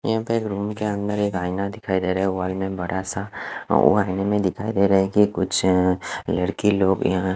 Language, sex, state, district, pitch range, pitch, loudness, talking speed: Hindi, male, Punjab, Fazilka, 95-105 Hz, 95 Hz, -22 LUFS, 220 wpm